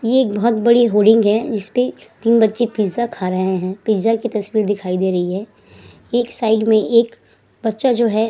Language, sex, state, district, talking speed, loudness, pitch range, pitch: Hindi, female, Uttar Pradesh, Hamirpur, 200 wpm, -17 LUFS, 205-235 Hz, 220 Hz